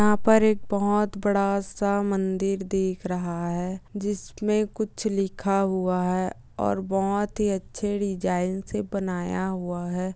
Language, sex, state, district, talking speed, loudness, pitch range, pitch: Hindi, female, Andhra Pradesh, Chittoor, 135 wpm, -26 LUFS, 185-205 Hz, 195 Hz